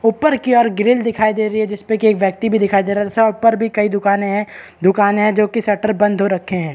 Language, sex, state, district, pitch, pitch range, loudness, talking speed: Hindi, female, Maharashtra, Aurangabad, 210 Hz, 200-225 Hz, -16 LUFS, 275 wpm